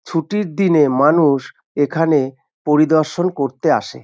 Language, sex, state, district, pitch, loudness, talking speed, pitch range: Bengali, male, West Bengal, North 24 Parganas, 155 Hz, -16 LUFS, 105 wpm, 140-165 Hz